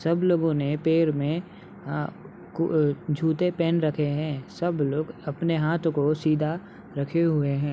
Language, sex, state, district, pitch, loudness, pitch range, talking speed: Hindi, male, Uttar Pradesh, Budaun, 160 Hz, -26 LUFS, 150-170 Hz, 155 wpm